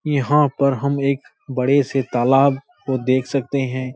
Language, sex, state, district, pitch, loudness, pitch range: Hindi, male, Bihar, Supaul, 135 Hz, -19 LUFS, 130-140 Hz